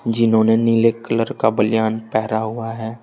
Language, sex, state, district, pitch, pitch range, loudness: Hindi, male, Uttar Pradesh, Saharanpur, 115 Hz, 110-115 Hz, -18 LUFS